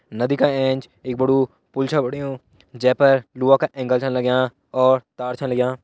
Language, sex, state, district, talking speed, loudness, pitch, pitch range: Hindi, male, Uttarakhand, Tehri Garhwal, 195 wpm, -20 LUFS, 130 Hz, 125-135 Hz